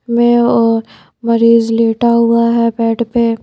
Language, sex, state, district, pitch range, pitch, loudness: Hindi, female, Bihar, Patna, 230-235 Hz, 230 Hz, -12 LUFS